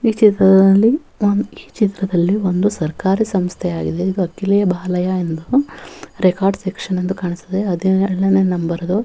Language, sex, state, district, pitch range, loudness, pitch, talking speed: Kannada, female, Karnataka, Bellary, 180-200 Hz, -17 LUFS, 190 Hz, 125 wpm